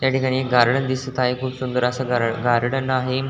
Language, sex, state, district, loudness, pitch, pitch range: Marathi, male, Maharashtra, Dhule, -21 LUFS, 130 Hz, 125-130 Hz